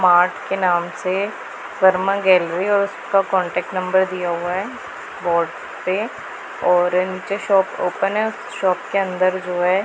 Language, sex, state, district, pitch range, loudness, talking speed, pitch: Hindi, female, Punjab, Pathankot, 180-195 Hz, -20 LUFS, 150 wpm, 185 Hz